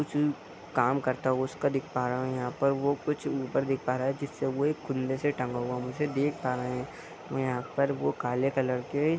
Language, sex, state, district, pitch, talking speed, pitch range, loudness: Hindi, male, Bihar, Bhagalpur, 135 Hz, 250 wpm, 125-140 Hz, -30 LUFS